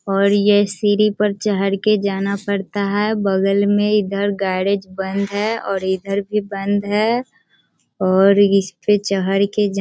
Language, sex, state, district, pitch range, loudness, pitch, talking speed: Hindi, female, Bihar, Sitamarhi, 195-205 Hz, -18 LUFS, 200 Hz, 155 wpm